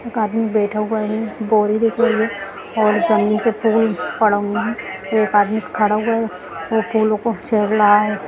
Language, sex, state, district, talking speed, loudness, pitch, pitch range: Hindi, female, Bihar, Gaya, 195 wpm, -18 LUFS, 215 Hz, 210-225 Hz